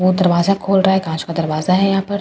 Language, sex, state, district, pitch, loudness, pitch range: Hindi, female, Bihar, Katihar, 190 Hz, -16 LUFS, 170-195 Hz